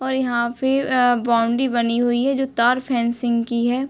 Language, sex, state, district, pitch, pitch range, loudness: Hindi, female, Uttar Pradesh, Ghazipur, 245 Hz, 235-260 Hz, -19 LUFS